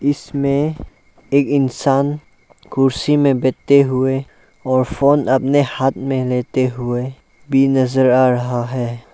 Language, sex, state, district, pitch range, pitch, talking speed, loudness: Hindi, male, Arunachal Pradesh, Lower Dibang Valley, 130-140 Hz, 135 Hz, 125 wpm, -17 LUFS